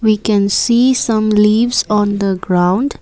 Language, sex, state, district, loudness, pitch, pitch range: English, female, Assam, Kamrup Metropolitan, -13 LUFS, 215 Hz, 200-230 Hz